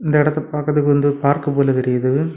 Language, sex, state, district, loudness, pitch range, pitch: Tamil, male, Tamil Nadu, Kanyakumari, -17 LUFS, 140-150 Hz, 145 Hz